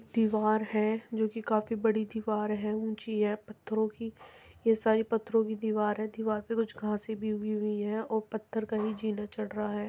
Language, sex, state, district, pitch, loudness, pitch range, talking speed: Hindi, female, Uttar Pradesh, Muzaffarnagar, 215 Hz, -32 LUFS, 215-220 Hz, 190 wpm